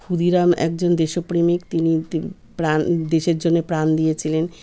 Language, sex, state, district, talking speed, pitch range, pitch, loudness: Bengali, male, West Bengal, Kolkata, 130 wpm, 160-175 Hz, 165 Hz, -20 LUFS